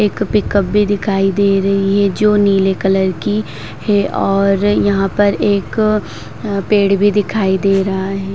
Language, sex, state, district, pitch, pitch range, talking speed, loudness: Hindi, female, Bihar, Vaishali, 200 Hz, 195-205 Hz, 160 wpm, -14 LUFS